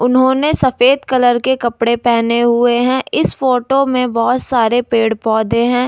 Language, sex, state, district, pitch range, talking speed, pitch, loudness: Hindi, female, Delhi, New Delhi, 235-260 Hz, 155 wpm, 245 Hz, -14 LUFS